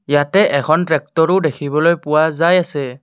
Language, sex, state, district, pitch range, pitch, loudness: Assamese, male, Assam, Kamrup Metropolitan, 145-170 Hz, 160 Hz, -15 LUFS